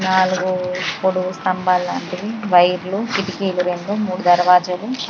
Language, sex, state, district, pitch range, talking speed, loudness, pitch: Telugu, female, Andhra Pradesh, Krishna, 180-195 Hz, 105 wpm, -18 LUFS, 185 Hz